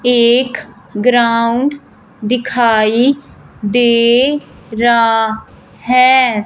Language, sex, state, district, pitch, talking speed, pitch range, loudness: Hindi, female, Punjab, Fazilka, 240 Hz, 55 wpm, 230-250 Hz, -12 LUFS